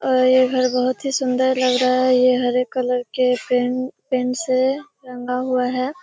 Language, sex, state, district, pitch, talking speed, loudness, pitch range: Hindi, female, Bihar, Kishanganj, 255 Hz, 190 wpm, -19 LUFS, 250-255 Hz